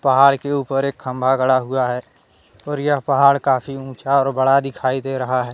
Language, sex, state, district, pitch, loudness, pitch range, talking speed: Hindi, male, Jharkhand, Deoghar, 135 Hz, -18 LUFS, 130-140 Hz, 205 wpm